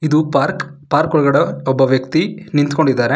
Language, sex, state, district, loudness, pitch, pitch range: Kannada, male, Karnataka, Bangalore, -16 LUFS, 145 Hz, 135-155 Hz